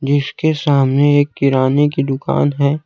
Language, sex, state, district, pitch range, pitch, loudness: Hindi, male, Bihar, Kaimur, 140-145 Hz, 140 Hz, -15 LUFS